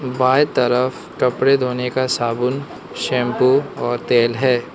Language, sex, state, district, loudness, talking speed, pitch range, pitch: Hindi, male, Manipur, Imphal West, -18 LUFS, 125 wpm, 120-130 Hz, 125 Hz